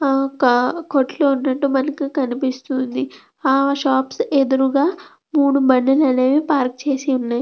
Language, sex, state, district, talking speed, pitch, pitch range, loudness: Telugu, female, Andhra Pradesh, Krishna, 120 wpm, 270 Hz, 260-280 Hz, -18 LUFS